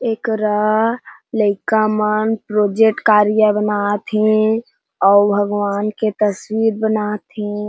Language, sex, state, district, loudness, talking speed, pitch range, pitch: Chhattisgarhi, female, Chhattisgarh, Jashpur, -16 LUFS, 85 wpm, 210-220 Hz, 215 Hz